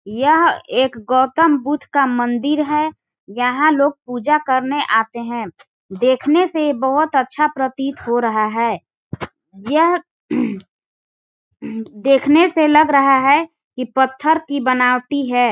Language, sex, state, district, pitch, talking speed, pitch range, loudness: Hindi, female, Chhattisgarh, Balrampur, 270 Hz, 125 wpm, 245-300 Hz, -16 LUFS